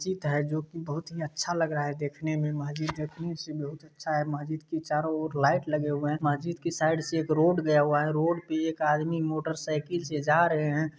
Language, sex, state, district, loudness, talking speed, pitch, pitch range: Hindi, male, Bihar, Kishanganj, -29 LUFS, 235 wpm, 155 Hz, 150-160 Hz